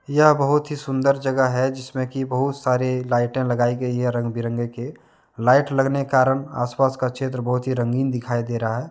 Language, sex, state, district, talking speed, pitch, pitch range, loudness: Hindi, male, Jharkhand, Deoghar, 195 wpm, 130 Hz, 120-135 Hz, -21 LUFS